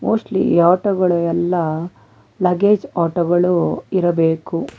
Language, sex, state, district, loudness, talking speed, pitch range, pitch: Kannada, male, Karnataka, Bangalore, -17 LUFS, 90 wpm, 165-185 Hz, 175 Hz